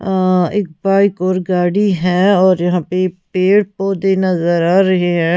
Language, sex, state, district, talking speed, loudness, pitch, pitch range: Hindi, female, Punjab, Pathankot, 165 wpm, -14 LUFS, 185 Hz, 180-195 Hz